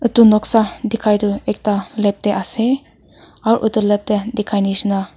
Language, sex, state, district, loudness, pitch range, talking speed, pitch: Nagamese, female, Nagaland, Kohima, -16 LUFS, 205-225 Hz, 160 wpm, 210 Hz